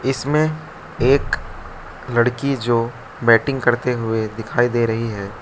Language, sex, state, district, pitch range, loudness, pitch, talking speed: Hindi, male, Arunachal Pradesh, Lower Dibang Valley, 115-135 Hz, -19 LUFS, 120 Hz, 120 wpm